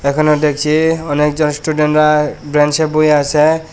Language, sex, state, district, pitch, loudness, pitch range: Bengali, male, Tripura, Unakoti, 150 Hz, -13 LUFS, 150-155 Hz